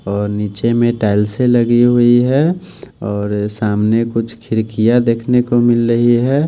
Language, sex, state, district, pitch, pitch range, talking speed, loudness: Hindi, male, Delhi, New Delhi, 115 Hz, 105-120 Hz, 150 wpm, -14 LUFS